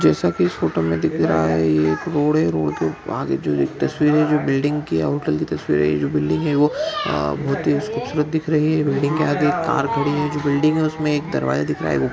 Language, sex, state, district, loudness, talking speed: Hindi, male, Bihar, East Champaran, -20 LUFS, 265 wpm